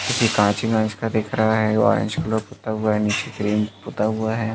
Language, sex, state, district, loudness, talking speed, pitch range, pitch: Hindi, male, Chhattisgarh, Balrampur, -21 LUFS, 210 wpm, 105-110 Hz, 110 Hz